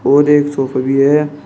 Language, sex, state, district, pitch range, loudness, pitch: Hindi, male, Uttar Pradesh, Shamli, 135-145 Hz, -13 LUFS, 145 Hz